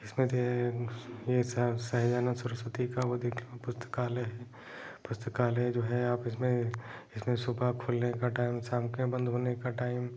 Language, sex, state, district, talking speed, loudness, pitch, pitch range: Hindi, male, Bihar, Jahanabad, 170 wpm, -33 LUFS, 120 Hz, 120-125 Hz